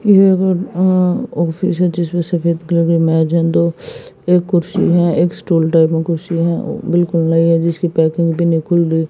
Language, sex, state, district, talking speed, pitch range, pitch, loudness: Hindi, female, Haryana, Jhajjar, 190 wpm, 165-175 Hz, 170 Hz, -15 LUFS